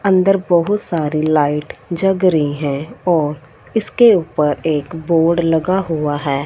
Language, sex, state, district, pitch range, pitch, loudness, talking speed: Hindi, female, Punjab, Fazilka, 150-185 Hz, 165 Hz, -16 LUFS, 140 wpm